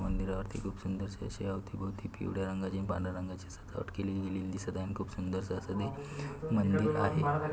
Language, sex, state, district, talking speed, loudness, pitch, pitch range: Marathi, male, Maharashtra, Chandrapur, 185 wpm, -36 LUFS, 95 Hz, 95-105 Hz